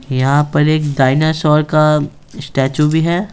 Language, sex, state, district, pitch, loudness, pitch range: Hindi, male, Bihar, Patna, 150 Hz, -14 LUFS, 140-155 Hz